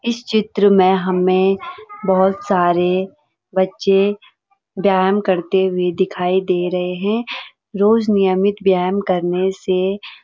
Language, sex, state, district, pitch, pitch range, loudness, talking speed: Hindi, female, Uttarakhand, Uttarkashi, 190 Hz, 185-205 Hz, -17 LUFS, 115 wpm